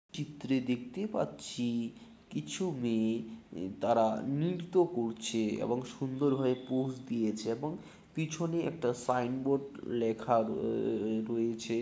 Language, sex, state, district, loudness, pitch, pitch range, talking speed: Bengali, male, West Bengal, Dakshin Dinajpur, -34 LUFS, 125 Hz, 115-150 Hz, 100 wpm